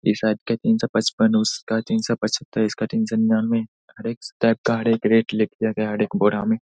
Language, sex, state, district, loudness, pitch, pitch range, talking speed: Hindi, male, Bihar, Saharsa, -21 LUFS, 110 Hz, 110-115 Hz, 265 wpm